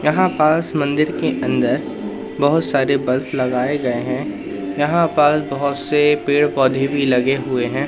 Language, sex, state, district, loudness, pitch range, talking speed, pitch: Hindi, male, Madhya Pradesh, Katni, -18 LUFS, 135-150 Hz, 150 wpm, 140 Hz